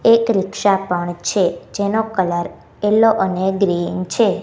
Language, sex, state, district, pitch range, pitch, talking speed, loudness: Gujarati, female, Gujarat, Gandhinagar, 180-215 Hz, 195 Hz, 135 wpm, -18 LUFS